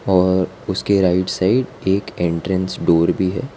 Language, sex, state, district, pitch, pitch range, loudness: Hindi, female, Gujarat, Valsad, 95 Hz, 85-95 Hz, -18 LUFS